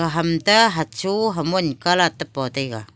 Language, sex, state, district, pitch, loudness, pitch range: Wancho, female, Arunachal Pradesh, Longding, 165 Hz, -19 LUFS, 135-185 Hz